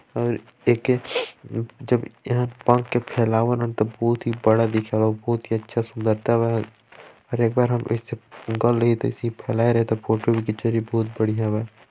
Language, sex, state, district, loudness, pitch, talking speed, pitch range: Chhattisgarhi, male, Chhattisgarh, Balrampur, -23 LUFS, 115 Hz, 135 wpm, 110-120 Hz